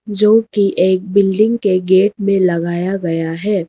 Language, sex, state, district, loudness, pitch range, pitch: Hindi, female, Arunachal Pradesh, Lower Dibang Valley, -14 LUFS, 185-205 Hz, 195 Hz